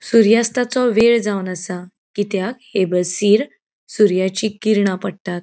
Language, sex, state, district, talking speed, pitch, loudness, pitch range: Konkani, female, Goa, North and South Goa, 110 wpm, 205 Hz, -17 LUFS, 190-230 Hz